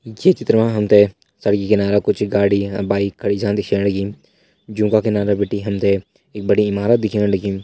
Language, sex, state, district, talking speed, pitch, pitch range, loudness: Hindi, male, Uttarakhand, Tehri Garhwal, 190 wpm, 100 Hz, 100-105 Hz, -17 LUFS